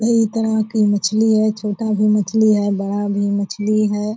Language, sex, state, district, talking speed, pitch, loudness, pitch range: Hindi, female, Bihar, Purnia, 185 wpm, 210 Hz, -17 LUFS, 205-220 Hz